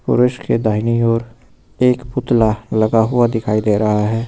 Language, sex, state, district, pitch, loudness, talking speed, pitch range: Hindi, male, Uttar Pradesh, Lucknow, 115 Hz, -16 LUFS, 170 wpm, 110-120 Hz